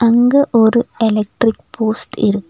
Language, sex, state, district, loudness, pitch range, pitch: Tamil, female, Tamil Nadu, Nilgiris, -15 LUFS, 215-235 Hz, 225 Hz